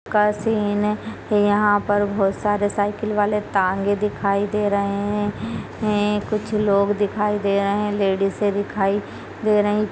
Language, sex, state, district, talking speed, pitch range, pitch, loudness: Hindi, female, Bihar, Purnia, 125 wpm, 200-210 Hz, 205 Hz, -21 LUFS